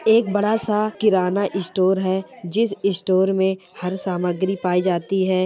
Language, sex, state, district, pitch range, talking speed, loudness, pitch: Hindi, female, Bihar, Sitamarhi, 185-205 Hz, 155 wpm, -21 LUFS, 190 Hz